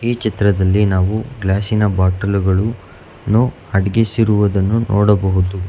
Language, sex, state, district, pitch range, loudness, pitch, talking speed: Kannada, male, Karnataka, Bangalore, 95-110 Hz, -16 LUFS, 100 Hz, 85 wpm